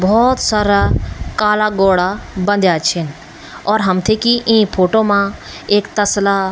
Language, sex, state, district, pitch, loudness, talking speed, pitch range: Garhwali, female, Uttarakhand, Tehri Garhwal, 200 Hz, -14 LUFS, 140 wpm, 185-215 Hz